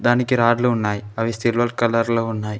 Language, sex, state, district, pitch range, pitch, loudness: Telugu, male, Telangana, Mahabubabad, 110-120 Hz, 115 Hz, -20 LUFS